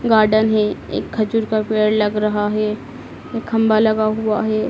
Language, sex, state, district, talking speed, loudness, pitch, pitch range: Hindi, female, Madhya Pradesh, Dhar, 165 wpm, -18 LUFS, 215 Hz, 215-220 Hz